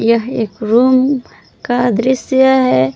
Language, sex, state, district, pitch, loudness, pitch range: Hindi, female, Jharkhand, Palamu, 245 Hz, -13 LUFS, 225-260 Hz